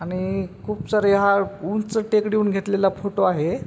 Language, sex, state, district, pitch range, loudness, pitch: Marathi, male, Maharashtra, Pune, 185-210 Hz, -21 LUFS, 200 Hz